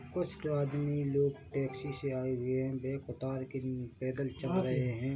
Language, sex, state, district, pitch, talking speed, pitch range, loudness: Hindi, male, Chhattisgarh, Bilaspur, 135 Hz, 185 wpm, 130-140 Hz, -35 LUFS